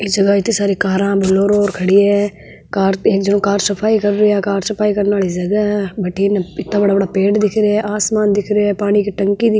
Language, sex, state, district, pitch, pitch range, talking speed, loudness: Marwari, female, Rajasthan, Nagaur, 205 Hz, 195-210 Hz, 245 wpm, -15 LUFS